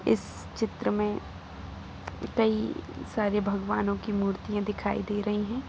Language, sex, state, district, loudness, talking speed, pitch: Hindi, female, Bihar, Saran, -30 LUFS, 125 wpm, 205 Hz